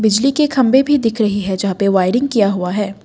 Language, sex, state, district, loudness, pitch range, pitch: Hindi, female, Assam, Kamrup Metropolitan, -15 LUFS, 200-260 Hz, 210 Hz